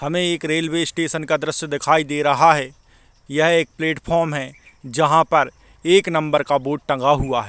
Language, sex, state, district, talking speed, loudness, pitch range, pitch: Hindi, male, Chhattisgarh, Balrampur, 185 wpm, -19 LUFS, 145-165 Hz, 155 Hz